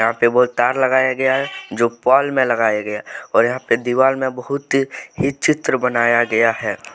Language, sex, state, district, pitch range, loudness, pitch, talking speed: Hindi, male, Jharkhand, Deoghar, 115-130 Hz, -17 LUFS, 125 Hz, 190 wpm